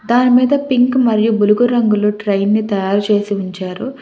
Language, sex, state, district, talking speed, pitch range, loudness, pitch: Telugu, female, Telangana, Hyderabad, 165 wpm, 205-245 Hz, -14 LUFS, 215 Hz